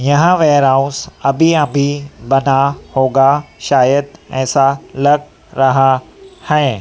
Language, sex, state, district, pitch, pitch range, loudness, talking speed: Hindi, female, Madhya Pradesh, Dhar, 140 Hz, 135-150 Hz, -13 LUFS, 95 wpm